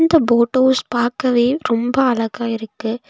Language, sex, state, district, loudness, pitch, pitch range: Tamil, female, Tamil Nadu, Nilgiris, -17 LUFS, 240 Hz, 230-260 Hz